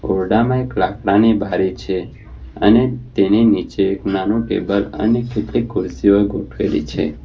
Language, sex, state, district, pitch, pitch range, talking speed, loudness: Gujarati, male, Gujarat, Valsad, 100 Hz, 95-115 Hz, 130 wpm, -17 LUFS